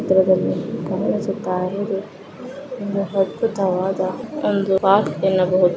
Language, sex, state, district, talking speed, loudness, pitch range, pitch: Kannada, female, Karnataka, Mysore, 75 wpm, -20 LUFS, 185-205 Hz, 195 Hz